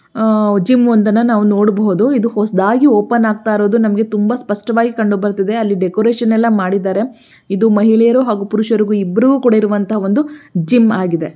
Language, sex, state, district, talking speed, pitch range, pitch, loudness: Kannada, female, Karnataka, Belgaum, 140 wpm, 205-230 Hz, 215 Hz, -13 LUFS